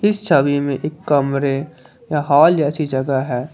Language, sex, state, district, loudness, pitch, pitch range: Hindi, male, Jharkhand, Palamu, -17 LUFS, 145 Hz, 135-155 Hz